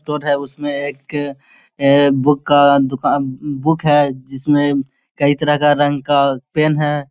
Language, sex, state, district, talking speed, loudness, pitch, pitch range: Hindi, male, Bihar, Gaya, 150 wpm, -16 LUFS, 145 Hz, 140-150 Hz